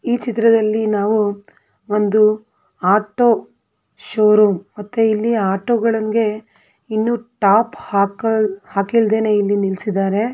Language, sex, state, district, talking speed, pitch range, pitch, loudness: Kannada, female, Karnataka, Belgaum, 80 wpm, 205-225 Hz, 215 Hz, -17 LUFS